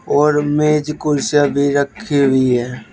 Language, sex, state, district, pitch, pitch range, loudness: Hindi, male, Uttar Pradesh, Shamli, 145 Hz, 140-150 Hz, -16 LUFS